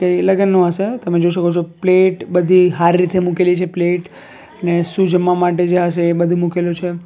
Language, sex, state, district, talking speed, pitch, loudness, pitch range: Gujarati, male, Gujarat, Valsad, 205 wpm, 180 Hz, -15 LUFS, 175-185 Hz